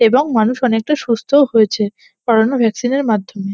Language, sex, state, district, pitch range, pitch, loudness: Bengali, female, West Bengal, North 24 Parganas, 220-260 Hz, 230 Hz, -15 LUFS